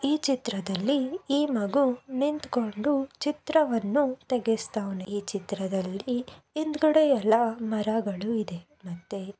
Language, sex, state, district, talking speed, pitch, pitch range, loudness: Kannada, female, Karnataka, Mysore, 90 wpm, 235 Hz, 200-280 Hz, -27 LUFS